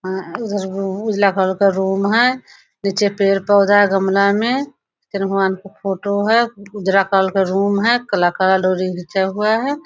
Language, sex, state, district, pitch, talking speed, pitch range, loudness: Hindi, female, Bihar, Madhepura, 200 Hz, 140 wpm, 190-210 Hz, -17 LUFS